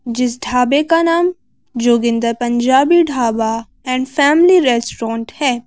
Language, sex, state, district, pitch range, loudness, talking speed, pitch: Hindi, female, Madhya Pradesh, Bhopal, 235-295 Hz, -15 LUFS, 115 wpm, 250 Hz